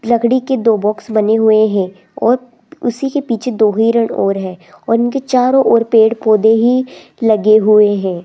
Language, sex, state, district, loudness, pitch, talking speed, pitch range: Hindi, female, Rajasthan, Jaipur, -13 LUFS, 225 Hz, 180 wpm, 215-245 Hz